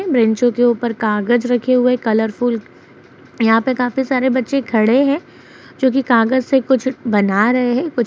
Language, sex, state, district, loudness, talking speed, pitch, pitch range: Hindi, female, Uttar Pradesh, Jyotiba Phule Nagar, -16 LUFS, 195 wpm, 245 Hz, 230-260 Hz